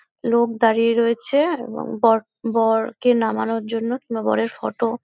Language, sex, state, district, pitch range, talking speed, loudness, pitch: Bengali, female, West Bengal, North 24 Parganas, 225-240 Hz, 145 wpm, -20 LUFS, 230 Hz